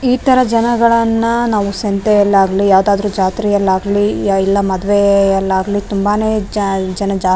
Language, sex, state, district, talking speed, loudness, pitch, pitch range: Kannada, female, Karnataka, Raichur, 115 wpm, -13 LUFS, 200 Hz, 195-215 Hz